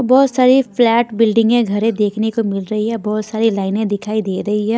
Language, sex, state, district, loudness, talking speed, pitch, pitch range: Hindi, female, Bihar, Patna, -16 LUFS, 215 wpm, 220 Hz, 210-230 Hz